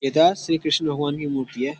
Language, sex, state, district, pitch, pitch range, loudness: Hindi, male, Uttar Pradesh, Jyotiba Phule Nagar, 145 Hz, 140-160 Hz, -22 LUFS